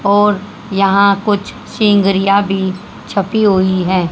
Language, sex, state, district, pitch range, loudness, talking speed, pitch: Hindi, female, Haryana, Charkhi Dadri, 190-205 Hz, -14 LUFS, 100 wpm, 200 Hz